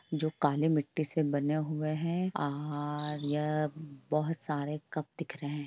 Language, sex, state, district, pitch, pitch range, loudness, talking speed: Hindi, female, Bihar, Jamui, 150 Hz, 145-155 Hz, -33 LUFS, 160 wpm